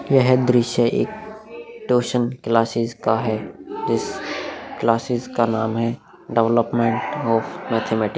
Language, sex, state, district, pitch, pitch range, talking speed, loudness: Hindi, male, Bihar, Vaishali, 115 Hz, 115-125 Hz, 115 wpm, -21 LUFS